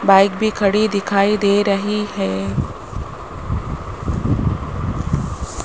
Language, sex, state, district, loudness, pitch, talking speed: Hindi, male, Rajasthan, Jaipur, -19 LUFS, 195 Hz, 75 wpm